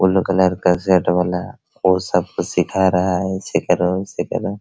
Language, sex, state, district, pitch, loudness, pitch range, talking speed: Hindi, male, Bihar, Araria, 95 Hz, -18 LUFS, 90-95 Hz, 145 wpm